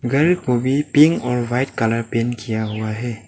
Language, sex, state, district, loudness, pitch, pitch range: Hindi, male, Arunachal Pradesh, Lower Dibang Valley, -19 LUFS, 120 Hz, 115-135 Hz